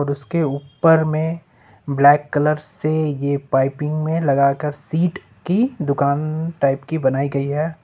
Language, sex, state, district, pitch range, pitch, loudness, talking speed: Hindi, male, Jharkhand, Ranchi, 140-160 Hz, 150 Hz, -19 LUFS, 145 wpm